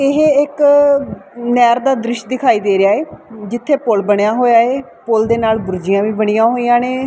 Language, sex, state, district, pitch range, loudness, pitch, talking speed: Punjabi, female, Punjab, Fazilka, 215-265 Hz, -14 LUFS, 235 Hz, 185 wpm